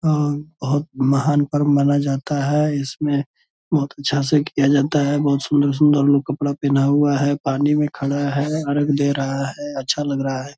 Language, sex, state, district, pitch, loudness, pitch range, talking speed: Hindi, male, Bihar, Purnia, 145 Hz, -19 LUFS, 140-145 Hz, 185 wpm